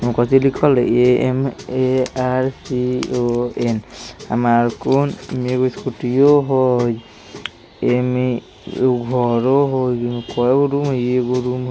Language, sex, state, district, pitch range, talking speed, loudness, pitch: Bajjika, male, Bihar, Vaishali, 120-130 Hz, 130 wpm, -18 LUFS, 125 Hz